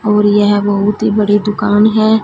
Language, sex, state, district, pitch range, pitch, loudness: Hindi, female, Punjab, Fazilka, 205-215 Hz, 210 Hz, -12 LUFS